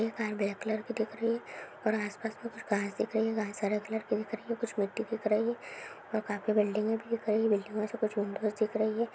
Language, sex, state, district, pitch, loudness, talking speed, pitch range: Hindi, female, Andhra Pradesh, Guntur, 215 Hz, -33 LUFS, 270 wpm, 210-225 Hz